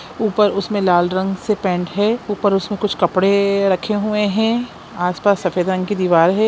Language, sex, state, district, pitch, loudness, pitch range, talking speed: Hindi, female, Bihar, Jamui, 200 Hz, -17 LUFS, 185-210 Hz, 185 wpm